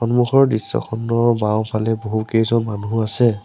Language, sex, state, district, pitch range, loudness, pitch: Assamese, male, Assam, Sonitpur, 110-120 Hz, -19 LUFS, 115 Hz